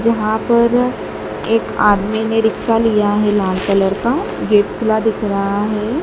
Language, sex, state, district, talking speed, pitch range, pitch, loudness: Hindi, male, Madhya Pradesh, Dhar, 160 wpm, 205-225 Hz, 220 Hz, -16 LUFS